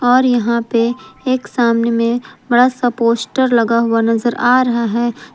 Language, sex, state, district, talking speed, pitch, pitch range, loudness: Hindi, female, Jharkhand, Palamu, 170 wpm, 240 Hz, 230-250 Hz, -15 LUFS